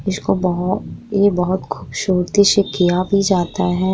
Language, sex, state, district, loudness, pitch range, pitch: Hindi, female, Bihar, Vaishali, -17 LUFS, 180-200 Hz, 185 Hz